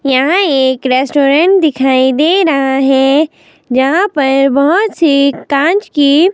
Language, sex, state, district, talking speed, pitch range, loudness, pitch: Hindi, female, Himachal Pradesh, Shimla, 125 wpm, 270-325 Hz, -11 LUFS, 280 Hz